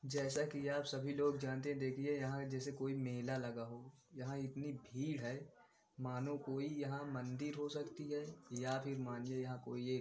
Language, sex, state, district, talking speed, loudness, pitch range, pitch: Hindi, male, Uttar Pradesh, Varanasi, 190 wpm, -43 LUFS, 130-145 Hz, 135 Hz